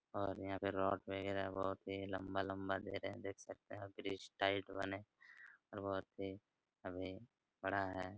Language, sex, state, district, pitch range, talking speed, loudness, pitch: Hindi, male, Chhattisgarh, Raigarh, 95-100 Hz, 175 wpm, -44 LUFS, 95 Hz